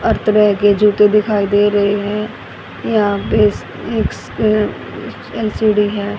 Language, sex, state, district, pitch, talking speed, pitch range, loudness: Hindi, female, Haryana, Rohtak, 210 Hz, 145 wpm, 205-215 Hz, -15 LUFS